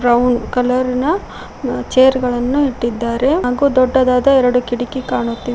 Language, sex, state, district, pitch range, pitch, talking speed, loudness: Kannada, female, Karnataka, Koppal, 245-260 Hz, 250 Hz, 120 wpm, -15 LUFS